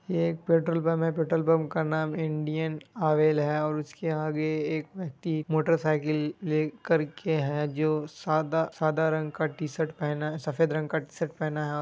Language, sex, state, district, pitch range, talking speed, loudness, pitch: Hindi, male, Bihar, Kishanganj, 150-160 Hz, 200 wpm, -28 LUFS, 155 Hz